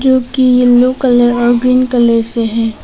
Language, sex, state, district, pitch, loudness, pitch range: Hindi, female, Arunachal Pradesh, Papum Pare, 245 Hz, -11 LUFS, 235-255 Hz